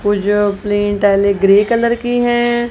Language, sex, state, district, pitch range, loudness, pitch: Hindi, female, Punjab, Kapurthala, 205-240 Hz, -14 LUFS, 205 Hz